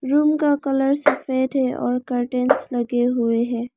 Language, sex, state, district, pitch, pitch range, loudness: Hindi, female, Arunachal Pradesh, Lower Dibang Valley, 260 Hz, 245-280 Hz, -20 LUFS